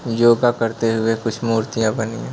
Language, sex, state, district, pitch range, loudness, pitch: Hindi, male, Uttar Pradesh, Gorakhpur, 110-115 Hz, -19 LUFS, 115 Hz